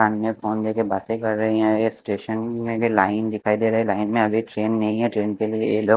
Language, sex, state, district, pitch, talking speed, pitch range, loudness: Hindi, male, Maharashtra, Mumbai Suburban, 110 Hz, 250 wpm, 105-110 Hz, -22 LUFS